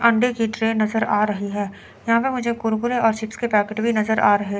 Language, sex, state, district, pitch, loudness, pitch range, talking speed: Hindi, female, Chandigarh, Chandigarh, 220 Hz, -21 LUFS, 210-235 Hz, 245 wpm